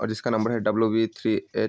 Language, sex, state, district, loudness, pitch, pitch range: Hindi, male, Bihar, Vaishali, -25 LUFS, 115 Hz, 110-115 Hz